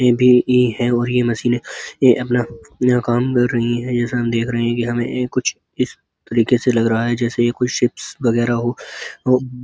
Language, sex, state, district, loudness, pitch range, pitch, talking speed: Hindi, male, Uttar Pradesh, Muzaffarnagar, -18 LUFS, 120-125 Hz, 120 Hz, 175 wpm